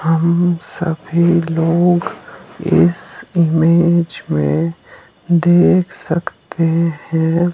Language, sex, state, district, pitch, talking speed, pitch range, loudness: Hindi, male, Himachal Pradesh, Shimla, 170 Hz, 70 wpm, 165-175 Hz, -15 LUFS